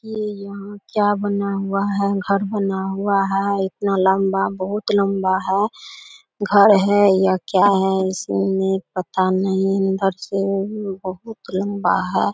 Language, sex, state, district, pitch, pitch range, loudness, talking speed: Hindi, female, Bihar, Samastipur, 195 Hz, 190-205 Hz, -19 LUFS, 145 wpm